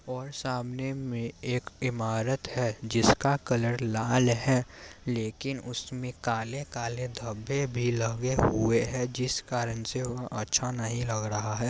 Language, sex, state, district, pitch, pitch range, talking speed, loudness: Hindi, male, Bihar, Muzaffarpur, 120 Hz, 115-130 Hz, 145 wpm, -30 LUFS